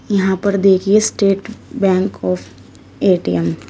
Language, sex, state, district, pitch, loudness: Hindi, female, Uttar Pradesh, Shamli, 190 Hz, -16 LUFS